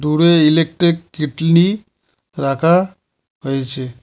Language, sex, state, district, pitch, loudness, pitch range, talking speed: Bengali, male, West Bengal, Cooch Behar, 160 Hz, -15 LUFS, 140-170 Hz, 75 wpm